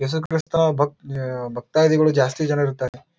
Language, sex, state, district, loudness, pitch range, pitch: Kannada, male, Karnataka, Bijapur, -21 LUFS, 130-155 Hz, 145 Hz